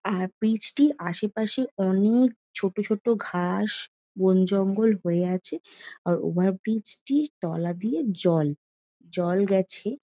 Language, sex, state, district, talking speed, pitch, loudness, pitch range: Bengali, female, West Bengal, Jhargram, 115 wpm, 195 Hz, -25 LUFS, 180-220 Hz